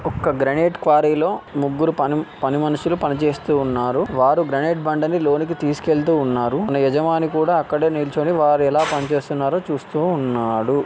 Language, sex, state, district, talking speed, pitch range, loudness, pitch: Telugu, male, Telangana, Karimnagar, 140 wpm, 140-160 Hz, -19 LUFS, 150 Hz